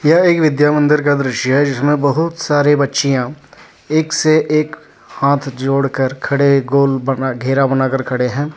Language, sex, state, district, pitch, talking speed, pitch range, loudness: Hindi, male, Jharkhand, Deoghar, 140 Hz, 175 wpm, 135-150 Hz, -15 LUFS